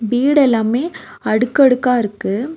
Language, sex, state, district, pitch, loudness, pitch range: Tamil, female, Tamil Nadu, Nilgiris, 250 Hz, -15 LUFS, 225-275 Hz